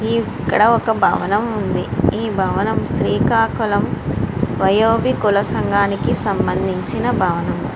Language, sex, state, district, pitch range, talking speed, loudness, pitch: Telugu, female, Andhra Pradesh, Srikakulam, 200-225 Hz, 95 wpm, -17 LUFS, 210 Hz